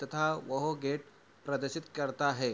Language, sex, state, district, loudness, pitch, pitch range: Hindi, male, Uttar Pradesh, Hamirpur, -34 LUFS, 140 Hz, 140-155 Hz